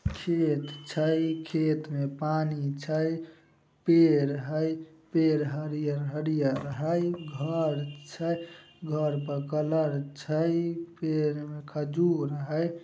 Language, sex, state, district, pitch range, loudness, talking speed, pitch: Maithili, male, Bihar, Samastipur, 150-160 Hz, -29 LUFS, 100 wpm, 155 Hz